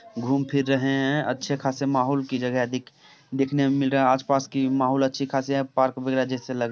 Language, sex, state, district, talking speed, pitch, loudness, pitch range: Hindi, male, Bihar, Samastipur, 205 wpm, 135 Hz, -24 LUFS, 130-140 Hz